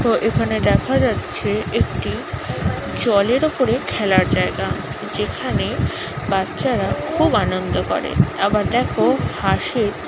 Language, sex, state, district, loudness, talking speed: Bengali, female, West Bengal, Kolkata, -19 LUFS, 95 wpm